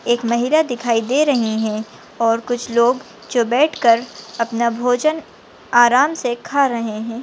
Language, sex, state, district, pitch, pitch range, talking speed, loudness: Hindi, female, Maharashtra, Chandrapur, 240 Hz, 230-255 Hz, 160 wpm, -18 LUFS